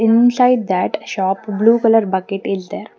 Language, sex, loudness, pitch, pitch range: English, female, -16 LUFS, 205 Hz, 195-230 Hz